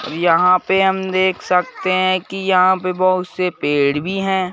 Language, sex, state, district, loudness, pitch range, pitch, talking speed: Hindi, male, Madhya Pradesh, Bhopal, -17 LUFS, 180-190 Hz, 185 Hz, 200 wpm